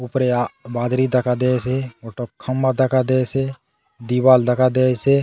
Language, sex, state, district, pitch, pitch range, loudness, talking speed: Halbi, male, Chhattisgarh, Bastar, 130 Hz, 125-130 Hz, -19 LUFS, 135 wpm